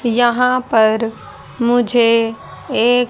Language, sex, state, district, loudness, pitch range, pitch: Hindi, female, Haryana, Rohtak, -15 LUFS, 230-245 Hz, 235 Hz